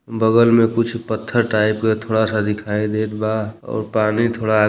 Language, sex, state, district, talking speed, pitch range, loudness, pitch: Bhojpuri, male, Uttar Pradesh, Deoria, 190 wpm, 105-115 Hz, -18 LUFS, 110 Hz